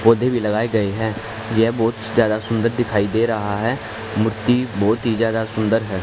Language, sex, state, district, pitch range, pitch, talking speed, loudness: Hindi, male, Haryana, Charkhi Dadri, 110-115 Hz, 110 Hz, 190 wpm, -20 LUFS